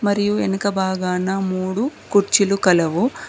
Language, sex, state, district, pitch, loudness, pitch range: Telugu, female, Telangana, Mahabubabad, 195 Hz, -19 LUFS, 185-205 Hz